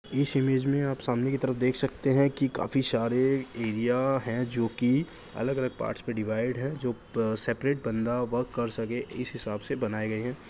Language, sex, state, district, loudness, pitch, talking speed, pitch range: Hindi, male, Bihar, Jahanabad, -29 LUFS, 125 Hz, 195 wpm, 115-135 Hz